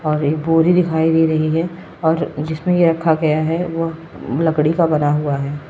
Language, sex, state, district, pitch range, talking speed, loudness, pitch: Hindi, female, Uttar Pradesh, Lalitpur, 155-165 Hz, 200 wpm, -17 LUFS, 160 Hz